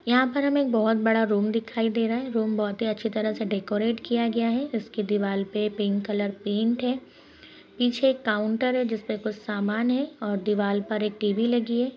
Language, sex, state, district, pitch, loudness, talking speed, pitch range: Hindi, female, Uttar Pradesh, Etah, 225 Hz, -26 LUFS, 215 wpm, 210-240 Hz